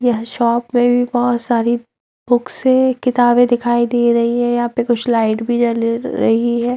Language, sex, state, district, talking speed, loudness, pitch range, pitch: Hindi, female, Bihar, Darbhanga, 175 wpm, -16 LUFS, 235-245 Hz, 240 Hz